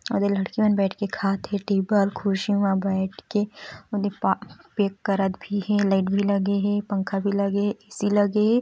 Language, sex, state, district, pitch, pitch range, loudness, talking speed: Hindi, female, Chhattisgarh, Korba, 200 Hz, 195-205 Hz, -24 LUFS, 200 wpm